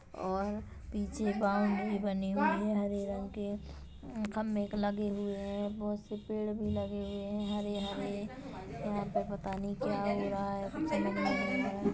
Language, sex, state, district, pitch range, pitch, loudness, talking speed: Hindi, female, Chhattisgarh, Kabirdham, 200-210 Hz, 205 Hz, -35 LUFS, 145 wpm